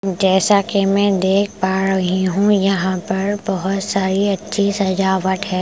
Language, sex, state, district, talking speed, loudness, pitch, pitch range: Hindi, female, Punjab, Pathankot, 160 wpm, -17 LUFS, 195 Hz, 190-200 Hz